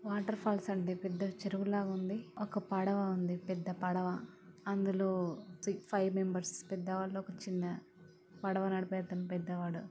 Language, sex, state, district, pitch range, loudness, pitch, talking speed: Telugu, female, Telangana, Nalgonda, 180-195 Hz, -37 LUFS, 190 Hz, 145 wpm